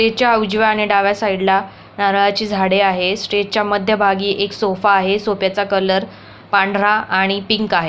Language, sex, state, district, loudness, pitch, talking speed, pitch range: Marathi, female, Maharashtra, Pune, -16 LUFS, 200 Hz, 160 wpm, 195-210 Hz